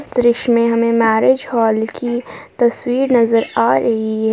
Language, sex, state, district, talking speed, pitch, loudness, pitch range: Hindi, female, Jharkhand, Palamu, 140 wpm, 235 Hz, -15 LUFS, 225-245 Hz